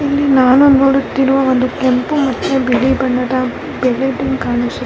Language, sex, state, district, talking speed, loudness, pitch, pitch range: Kannada, female, Karnataka, Bellary, 100 wpm, -14 LUFS, 265 Hz, 255-270 Hz